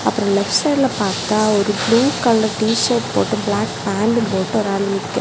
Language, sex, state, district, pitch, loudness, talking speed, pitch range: Tamil, female, Tamil Nadu, Kanyakumari, 215 Hz, -17 LUFS, 160 wpm, 200-230 Hz